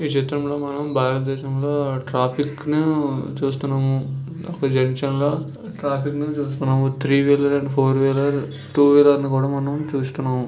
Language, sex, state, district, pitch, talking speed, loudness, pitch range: Telugu, male, Andhra Pradesh, Visakhapatnam, 140 Hz, 45 wpm, -21 LUFS, 135-145 Hz